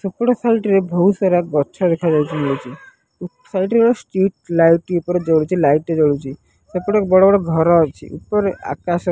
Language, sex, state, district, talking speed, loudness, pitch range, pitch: Odia, male, Odisha, Nuapada, 175 wpm, -17 LUFS, 160-195 Hz, 180 Hz